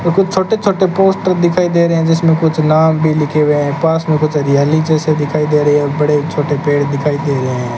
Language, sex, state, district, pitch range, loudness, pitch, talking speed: Hindi, male, Rajasthan, Bikaner, 145-165 Hz, -13 LUFS, 155 Hz, 240 wpm